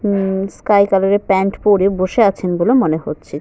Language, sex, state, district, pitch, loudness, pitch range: Bengali, female, West Bengal, Paschim Medinipur, 195 Hz, -15 LUFS, 185-205 Hz